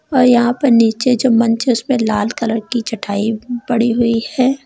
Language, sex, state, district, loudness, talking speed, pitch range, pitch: Hindi, female, Uttar Pradesh, Lalitpur, -15 LUFS, 180 wpm, 225-250 Hz, 235 Hz